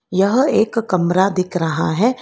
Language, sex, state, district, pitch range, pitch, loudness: Hindi, female, Karnataka, Bangalore, 180-230 Hz, 190 Hz, -17 LUFS